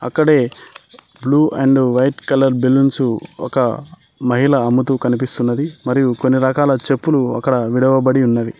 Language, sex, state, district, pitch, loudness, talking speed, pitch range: Telugu, male, Telangana, Mahabubabad, 130 Hz, -16 LUFS, 120 wpm, 125-135 Hz